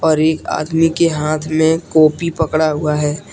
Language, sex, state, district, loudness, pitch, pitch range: Hindi, male, Jharkhand, Deoghar, -15 LUFS, 155 Hz, 155-160 Hz